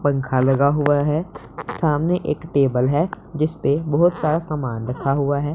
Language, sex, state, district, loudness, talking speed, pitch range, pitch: Hindi, male, Punjab, Pathankot, -20 LUFS, 175 wpm, 140-160 Hz, 145 Hz